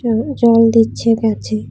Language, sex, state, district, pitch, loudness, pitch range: Bengali, female, Tripura, West Tripura, 230 Hz, -14 LUFS, 220-230 Hz